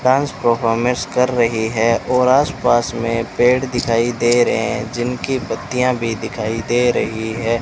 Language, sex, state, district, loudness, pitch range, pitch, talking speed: Hindi, male, Rajasthan, Bikaner, -17 LUFS, 115-125 Hz, 120 Hz, 165 wpm